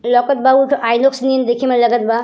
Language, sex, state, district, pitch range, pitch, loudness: Bhojpuri, female, Uttar Pradesh, Gorakhpur, 240-265 Hz, 250 Hz, -14 LUFS